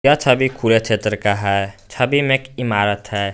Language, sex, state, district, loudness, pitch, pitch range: Hindi, male, Jharkhand, Garhwa, -17 LUFS, 110 Hz, 100-130 Hz